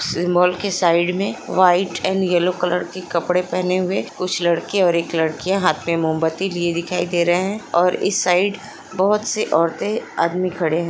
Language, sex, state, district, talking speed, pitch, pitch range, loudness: Hindi, female, Chhattisgarh, Sukma, 140 wpm, 180 Hz, 170-190 Hz, -19 LUFS